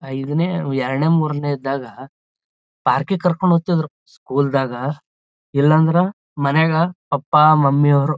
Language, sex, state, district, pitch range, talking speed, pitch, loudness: Kannada, male, Karnataka, Gulbarga, 135-160 Hz, 105 wpm, 145 Hz, -18 LUFS